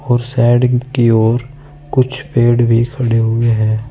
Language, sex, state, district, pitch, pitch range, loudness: Hindi, male, Uttar Pradesh, Saharanpur, 120 Hz, 115-130 Hz, -14 LUFS